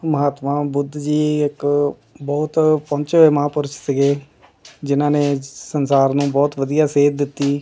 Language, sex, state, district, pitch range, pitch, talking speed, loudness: Punjabi, male, Punjab, Kapurthala, 140-150 Hz, 145 Hz, 135 wpm, -18 LUFS